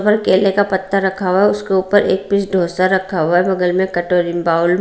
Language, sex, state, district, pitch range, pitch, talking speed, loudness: Hindi, female, Bihar, Patna, 180-195 Hz, 190 Hz, 235 wpm, -15 LUFS